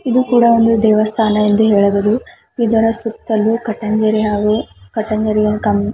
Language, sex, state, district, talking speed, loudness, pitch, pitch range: Kannada, female, Karnataka, Belgaum, 120 wpm, -14 LUFS, 215 Hz, 210-225 Hz